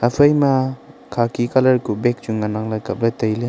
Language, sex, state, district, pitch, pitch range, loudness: Wancho, male, Arunachal Pradesh, Longding, 120 Hz, 110-130 Hz, -19 LUFS